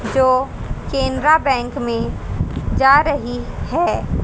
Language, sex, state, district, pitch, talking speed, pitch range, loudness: Hindi, female, Haryana, Rohtak, 265 Hz, 100 wpm, 245-285 Hz, -18 LUFS